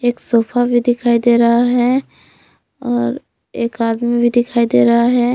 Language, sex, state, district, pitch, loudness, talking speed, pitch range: Hindi, female, Jharkhand, Palamu, 240 Hz, -15 LUFS, 155 wpm, 235-245 Hz